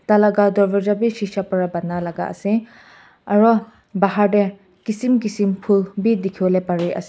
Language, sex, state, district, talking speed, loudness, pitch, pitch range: Nagamese, male, Nagaland, Kohima, 160 wpm, -19 LUFS, 200 Hz, 190-215 Hz